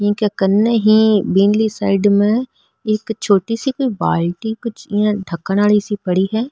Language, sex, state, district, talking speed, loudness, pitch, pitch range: Rajasthani, female, Rajasthan, Nagaur, 145 wpm, -16 LUFS, 210 Hz, 200-220 Hz